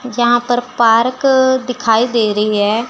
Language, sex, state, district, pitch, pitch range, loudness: Hindi, female, Chandigarh, Chandigarh, 240 Hz, 225-250 Hz, -13 LUFS